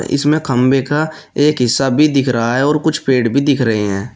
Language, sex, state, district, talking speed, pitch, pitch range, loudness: Hindi, male, Uttar Pradesh, Shamli, 230 wpm, 135 Hz, 125-150 Hz, -14 LUFS